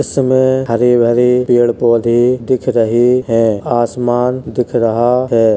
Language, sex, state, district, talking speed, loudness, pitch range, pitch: Hindi, male, Uttar Pradesh, Hamirpur, 130 wpm, -13 LUFS, 115-125 Hz, 120 Hz